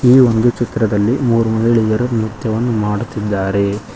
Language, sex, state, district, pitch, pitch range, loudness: Kannada, male, Karnataka, Koppal, 110 Hz, 105-120 Hz, -15 LUFS